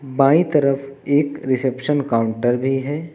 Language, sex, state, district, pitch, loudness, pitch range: Hindi, male, Uttar Pradesh, Lucknow, 135 Hz, -19 LUFS, 130-145 Hz